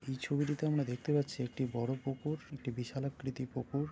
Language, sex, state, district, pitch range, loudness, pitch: Bengali, male, West Bengal, Jalpaiguri, 130-145 Hz, -37 LUFS, 135 Hz